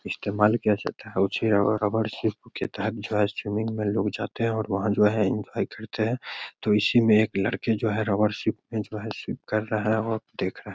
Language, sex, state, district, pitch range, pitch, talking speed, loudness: Hindi, male, Bihar, Begusarai, 105-110 Hz, 110 Hz, 180 wpm, -26 LUFS